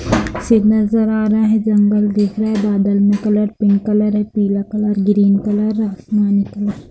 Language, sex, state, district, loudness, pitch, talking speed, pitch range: Hindi, female, Bihar, Lakhisarai, -15 LUFS, 210 Hz, 190 wpm, 200-215 Hz